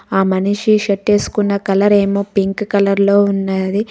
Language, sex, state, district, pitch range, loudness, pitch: Telugu, female, Telangana, Hyderabad, 195-205 Hz, -15 LUFS, 200 Hz